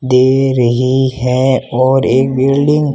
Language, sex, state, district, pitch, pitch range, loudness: Hindi, male, Rajasthan, Bikaner, 130 Hz, 130-135 Hz, -12 LUFS